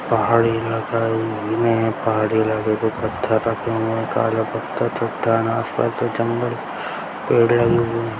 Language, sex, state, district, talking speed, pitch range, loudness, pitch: Hindi, male, Bihar, Bhagalpur, 140 wpm, 110-115 Hz, -20 LUFS, 115 Hz